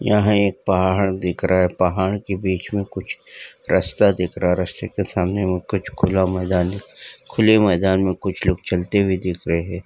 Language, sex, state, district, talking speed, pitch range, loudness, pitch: Hindi, male, Uttarakhand, Uttarkashi, 195 wpm, 90-100 Hz, -20 LUFS, 95 Hz